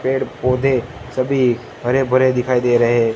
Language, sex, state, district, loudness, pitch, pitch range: Hindi, male, Gujarat, Gandhinagar, -17 LUFS, 125 Hz, 120-130 Hz